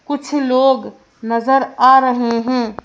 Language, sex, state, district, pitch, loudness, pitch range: Hindi, female, Madhya Pradesh, Bhopal, 255 Hz, -15 LUFS, 235-270 Hz